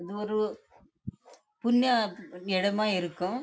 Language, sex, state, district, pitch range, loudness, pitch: Tamil, female, Karnataka, Chamarajanagar, 185-220 Hz, -28 LUFS, 210 Hz